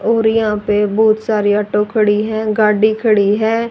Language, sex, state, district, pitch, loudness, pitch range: Hindi, female, Haryana, Rohtak, 215 Hz, -14 LUFS, 210-220 Hz